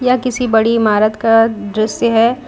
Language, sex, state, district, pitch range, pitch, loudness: Hindi, female, Uttar Pradesh, Lucknow, 215-245 Hz, 225 Hz, -13 LUFS